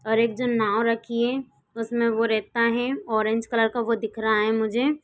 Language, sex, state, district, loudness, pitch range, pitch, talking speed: Hindi, female, Jharkhand, Sahebganj, -24 LUFS, 220-235 Hz, 230 Hz, 200 wpm